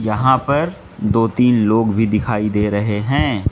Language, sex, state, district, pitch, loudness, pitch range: Hindi, male, Mizoram, Aizawl, 110 Hz, -17 LUFS, 105-125 Hz